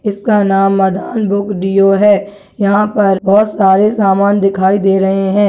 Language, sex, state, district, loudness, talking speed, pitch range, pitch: Hindi, male, Bihar, Kishanganj, -12 LUFS, 165 wpm, 195-205 Hz, 200 Hz